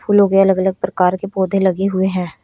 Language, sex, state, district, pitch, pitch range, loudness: Hindi, female, Haryana, Rohtak, 190 Hz, 185-195 Hz, -16 LUFS